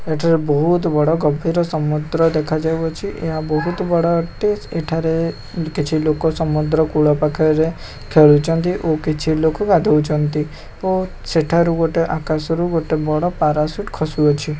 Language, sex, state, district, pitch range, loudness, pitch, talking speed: Odia, male, Odisha, Khordha, 150-165 Hz, -18 LUFS, 160 Hz, 120 wpm